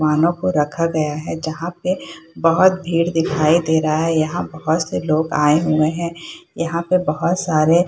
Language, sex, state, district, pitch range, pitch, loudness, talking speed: Hindi, female, Bihar, Saharsa, 155-170 Hz, 165 Hz, -18 LUFS, 200 wpm